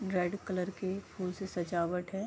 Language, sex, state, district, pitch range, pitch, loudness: Hindi, female, Uttar Pradesh, Gorakhpur, 180-195 Hz, 185 Hz, -36 LUFS